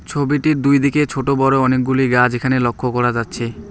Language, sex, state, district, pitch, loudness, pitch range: Bengali, male, West Bengal, Alipurduar, 130 Hz, -16 LUFS, 125-140 Hz